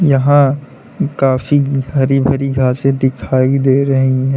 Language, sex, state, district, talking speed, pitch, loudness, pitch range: Hindi, male, Uttar Pradesh, Lalitpur, 125 wpm, 135 Hz, -14 LUFS, 130-140 Hz